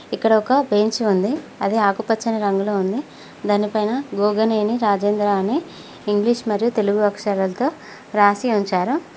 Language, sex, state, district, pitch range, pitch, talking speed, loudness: Telugu, female, Telangana, Mahabubabad, 205-230 Hz, 210 Hz, 120 wpm, -20 LUFS